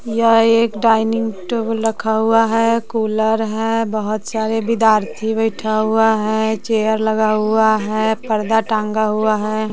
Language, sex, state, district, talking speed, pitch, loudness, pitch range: Hindi, female, Bihar, West Champaran, 140 wpm, 220 Hz, -17 LUFS, 215-225 Hz